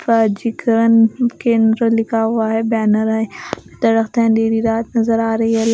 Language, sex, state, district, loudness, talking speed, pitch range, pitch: Hindi, female, Bihar, West Champaran, -16 LUFS, 145 wpm, 225-230 Hz, 225 Hz